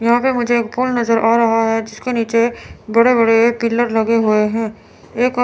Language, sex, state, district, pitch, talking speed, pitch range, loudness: Hindi, female, Chandigarh, Chandigarh, 230 Hz, 190 wpm, 225-240 Hz, -16 LUFS